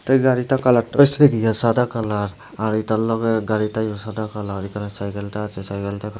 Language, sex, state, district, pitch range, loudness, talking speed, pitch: Bengali, male, Tripura, Unakoti, 105-115 Hz, -20 LUFS, 175 wpm, 110 Hz